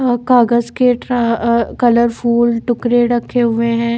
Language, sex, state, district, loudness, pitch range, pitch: Hindi, female, Bihar, Katihar, -14 LUFS, 235-245 Hz, 235 Hz